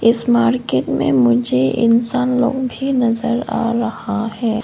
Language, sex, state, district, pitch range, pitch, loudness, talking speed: Hindi, female, Arunachal Pradesh, Longding, 220-245 Hz, 230 Hz, -16 LUFS, 140 wpm